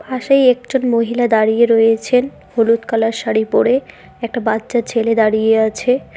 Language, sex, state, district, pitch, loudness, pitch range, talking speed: Bengali, female, West Bengal, Cooch Behar, 230 Hz, -15 LUFS, 225-250 Hz, 135 wpm